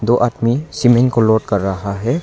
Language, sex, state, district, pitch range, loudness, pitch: Hindi, male, Arunachal Pradesh, Longding, 110-125 Hz, -15 LUFS, 120 Hz